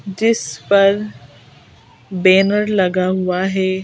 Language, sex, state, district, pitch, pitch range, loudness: Hindi, female, Madhya Pradesh, Bhopal, 185 Hz, 150-195 Hz, -16 LUFS